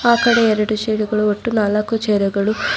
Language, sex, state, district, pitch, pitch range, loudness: Kannada, female, Karnataka, Bangalore, 215 Hz, 210-225 Hz, -17 LUFS